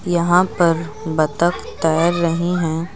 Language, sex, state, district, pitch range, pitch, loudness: Hindi, female, Uttar Pradesh, Lucknow, 160-175 Hz, 170 Hz, -18 LUFS